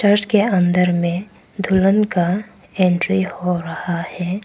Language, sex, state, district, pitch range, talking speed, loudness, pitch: Hindi, female, Arunachal Pradesh, Papum Pare, 175-200 Hz, 120 wpm, -18 LUFS, 185 Hz